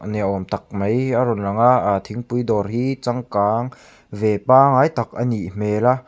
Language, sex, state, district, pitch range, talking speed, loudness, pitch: Mizo, male, Mizoram, Aizawl, 105-125 Hz, 195 wpm, -19 LUFS, 115 Hz